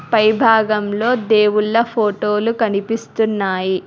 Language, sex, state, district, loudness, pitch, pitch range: Telugu, female, Telangana, Hyderabad, -16 LUFS, 215 Hz, 210-225 Hz